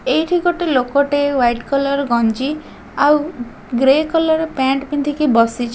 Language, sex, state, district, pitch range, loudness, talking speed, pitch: Odia, female, Odisha, Khordha, 245-300 Hz, -16 LUFS, 145 wpm, 280 Hz